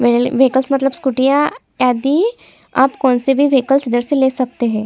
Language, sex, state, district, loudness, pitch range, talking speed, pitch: Hindi, female, Chhattisgarh, Kabirdham, -15 LUFS, 250-275 Hz, 185 wpm, 265 Hz